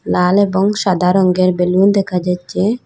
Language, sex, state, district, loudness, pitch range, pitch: Bengali, female, Assam, Hailakandi, -14 LUFS, 180-200 Hz, 185 Hz